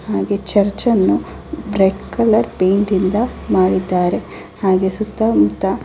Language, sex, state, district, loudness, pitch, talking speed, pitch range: Kannada, female, Karnataka, Bellary, -16 LUFS, 195 Hz, 115 wpm, 185-215 Hz